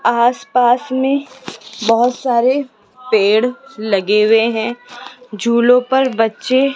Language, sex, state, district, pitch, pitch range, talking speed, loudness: Hindi, female, Rajasthan, Jaipur, 240 Hz, 225-255 Hz, 105 wpm, -15 LUFS